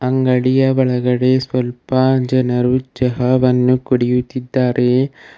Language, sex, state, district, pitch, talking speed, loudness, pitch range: Kannada, male, Karnataka, Bidar, 125 Hz, 65 wpm, -16 LUFS, 125-130 Hz